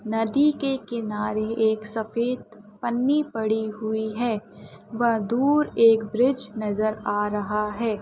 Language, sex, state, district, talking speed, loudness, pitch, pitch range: Hindi, female, Chhattisgarh, Sukma, 135 wpm, -24 LUFS, 220 Hz, 215-240 Hz